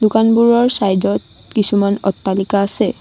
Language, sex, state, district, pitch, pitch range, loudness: Assamese, female, Assam, Sonitpur, 205 Hz, 200-225 Hz, -15 LUFS